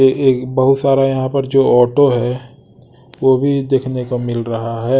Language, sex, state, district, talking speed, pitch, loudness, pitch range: Hindi, male, Odisha, Sambalpur, 190 wpm, 130 Hz, -15 LUFS, 125-135 Hz